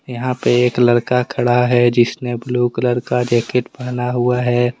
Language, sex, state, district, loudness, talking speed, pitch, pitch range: Hindi, male, Jharkhand, Deoghar, -16 LUFS, 175 wpm, 125 Hz, 120-125 Hz